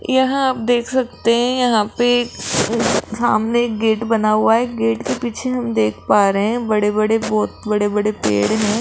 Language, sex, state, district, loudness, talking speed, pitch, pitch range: Hindi, female, Rajasthan, Jaipur, -17 LUFS, 190 wpm, 225 Hz, 210-240 Hz